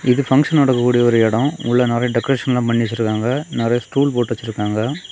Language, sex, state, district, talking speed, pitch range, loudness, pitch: Tamil, male, Tamil Nadu, Kanyakumari, 165 wpm, 115-135 Hz, -17 LUFS, 120 Hz